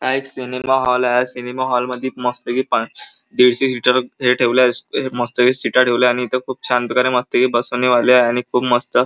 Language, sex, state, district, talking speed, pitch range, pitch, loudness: Marathi, male, Maharashtra, Chandrapur, 190 wpm, 125-130 Hz, 125 Hz, -17 LUFS